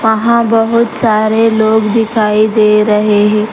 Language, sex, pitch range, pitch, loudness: Hindi, female, 210-225 Hz, 220 Hz, -10 LUFS